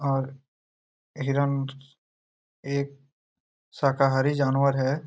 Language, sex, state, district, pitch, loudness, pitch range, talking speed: Hindi, male, Jharkhand, Jamtara, 135 Hz, -26 LUFS, 130-140 Hz, 70 wpm